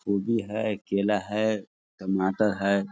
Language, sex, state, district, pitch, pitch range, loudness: Hindi, male, Bihar, Sitamarhi, 100 Hz, 100-110 Hz, -27 LUFS